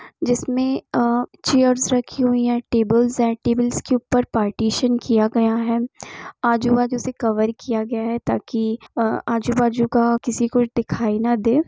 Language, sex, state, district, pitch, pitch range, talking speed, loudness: Hindi, female, Bihar, Gopalganj, 235 Hz, 230-245 Hz, 155 wpm, -20 LUFS